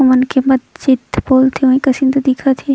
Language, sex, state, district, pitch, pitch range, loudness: Surgujia, female, Chhattisgarh, Sarguja, 265 Hz, 260-270 Hz, -13 LUFS